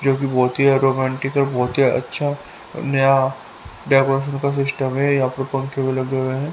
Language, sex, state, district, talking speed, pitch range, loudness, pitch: Hindi, male, Haryana, Rohtak, 195 wpm, 130-140 Hz, -19 LUFS, 135 Hz